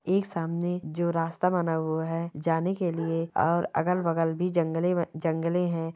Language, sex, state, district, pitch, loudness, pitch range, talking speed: Hindi, male, Chhattisgarh, Bastar, 170 Hz, -28 LUFS, 165-175 Hz, 170 wpm